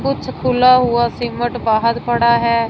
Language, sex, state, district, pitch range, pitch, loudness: Hindi, female, Punjab, Fazilka, 235-245 Hz, 240 Hz, -15 LUFS